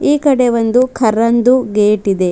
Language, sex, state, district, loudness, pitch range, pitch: Kannada, female, Karnataka, Bidar, -12 LUFS, 215-255 Hz, 235 Hz